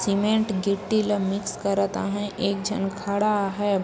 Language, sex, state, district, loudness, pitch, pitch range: Chhattisgarhi, female, Chhattisgarh, Sarguja, -25 LUFS, 200 Hz, 195-205 Hz